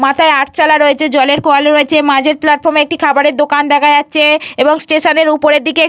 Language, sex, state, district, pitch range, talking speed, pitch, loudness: Bengali, female, Jharkhand, Jamtara, 290-310 Hz, 185 wpm, 300 Hz, -10 LUFS